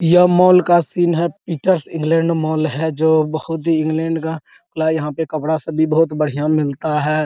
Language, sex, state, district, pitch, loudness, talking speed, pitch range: Hindi, male, Bihar, Araria, 160 Hz, -17 LUFS, 190 wpm, 155-165 Hz